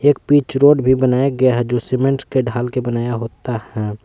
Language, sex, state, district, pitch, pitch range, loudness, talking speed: Hindi, male, Jharkhand, Palamu, 125 Hz, 120-135 Hz, -16 LUFS, 205 wpm